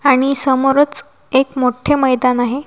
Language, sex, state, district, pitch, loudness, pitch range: Marathi, female, Maharashtra, Washim, 270 Hz, -14 LUFS, 255-280 Hz